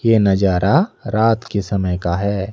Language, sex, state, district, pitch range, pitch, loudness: Hindi, male, Odisha, Nuapada, 95-115 Hz, 100 Hz, -17 LUFS